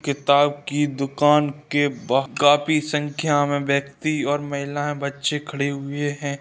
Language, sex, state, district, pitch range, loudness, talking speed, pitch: Hindi, male, Bihar, Madhepura, 140-145 Hz, -21 LUFS, 140 wpm, 145 Hz